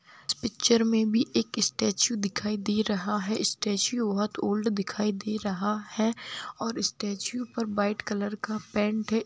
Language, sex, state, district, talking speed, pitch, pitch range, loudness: Hindi, female, Bihar, Darbhanga, 155 wpm, 210 Hz, 205-225 Hz, -28 LUFS